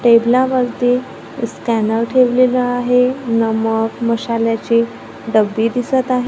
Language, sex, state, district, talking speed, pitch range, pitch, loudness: Marathi, female, Maharashtra, Gondia, 85 wpm, 230-250 Hz, 240 Hz, -16 LUFS